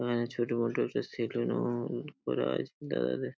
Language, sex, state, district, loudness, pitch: Bengali, male, West Bengal, Paschim Medinipur, -33 LUFS, 115 Hz